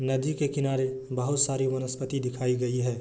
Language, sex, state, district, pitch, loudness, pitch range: Hindi, male, Bihar, Kishanganj, 130 Hz, -28 LUFS, 125-135 Hz